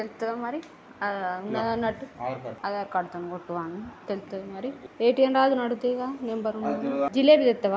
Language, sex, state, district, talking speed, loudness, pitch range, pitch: Telugu, female, Andhra Pradesh, Srikakulam, 160 wpm, -27 LUFS, 190-250 Hz, 220 Hz